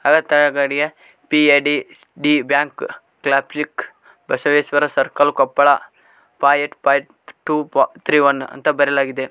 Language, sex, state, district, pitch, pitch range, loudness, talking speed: Kannada, male, Karnataka, Koppal, 145 Hz, 140-150 Hz, -17 LUFS, 90 wpm